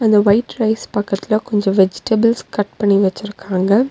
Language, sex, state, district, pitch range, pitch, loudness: Tamil, female, Tamil Nadu, Nilgiris, 200-220 Hz, 210 Hz, -16 LUFS